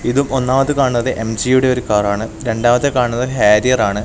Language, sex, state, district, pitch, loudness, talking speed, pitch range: Malayalam, male, Kerala, Kasaragod, 125 Hz, -15 LUFS, 165 wpm, 110-130 Hz